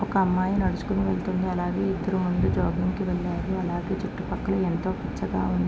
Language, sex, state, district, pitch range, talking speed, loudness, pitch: Telugu, female, Andhra Pradesh, Guntur, 175-190 Hz, 180 wpm, -26 LUFS, 185 Hz